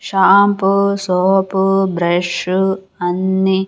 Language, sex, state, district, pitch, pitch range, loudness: Telugu, female, Andhra Pradesh, Sri Satya Sai, 190 Hz, 185-195 Hz, -15 LUFS